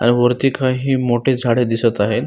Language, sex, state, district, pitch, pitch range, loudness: Marathi, male, Maharashtra, Solapur, 120 Hz, 120-130 Hz, -17 LUFS